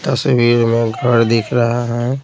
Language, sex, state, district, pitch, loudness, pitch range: Hindi, male, Bihar, Patna, 120 Hz, -15 LUFS, 115-120 Hz